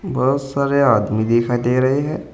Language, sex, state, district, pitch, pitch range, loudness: Hindi, male, Uttar Pradesh, Saharanpur, 130 Hz, 120-140 Hz, -17 LUFS